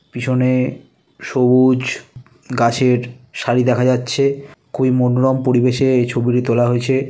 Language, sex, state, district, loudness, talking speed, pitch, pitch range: Bengali, male, West Bengal, Kolkata, -16 LUFS, 110 wpm, 125 Hz, 125-130 Hz